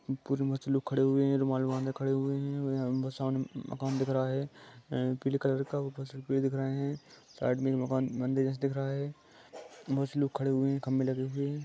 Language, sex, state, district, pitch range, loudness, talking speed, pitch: Hindi, male, Chhattisgarh, Raigarh, 130-140 Hz, -32 LUFS, 175 wpm, 135 Hz